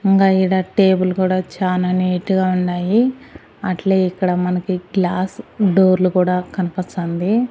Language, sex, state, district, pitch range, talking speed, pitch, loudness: Telugu, female, Andhra Pradesh, Annamaya, 180-190 Hz, 130 wpm, 185 Hz, -17 LUFS